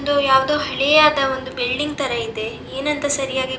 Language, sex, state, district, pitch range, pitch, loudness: Kannada, female, Karnataka, Dakshina Kannada, 260-290 Hz, 270 Hz, -18 LUFS